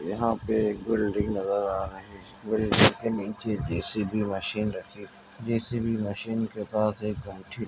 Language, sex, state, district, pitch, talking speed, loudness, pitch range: Hindi, male, Bihar, Begusarai, 105 Hz, 170 wpm, -27 LUFS, 100-110 Hz